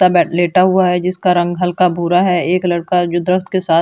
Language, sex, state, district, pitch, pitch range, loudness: Hindi, female, Delhi, New Delhi, 180 Hz, 175-185 Hz, -14 LUFS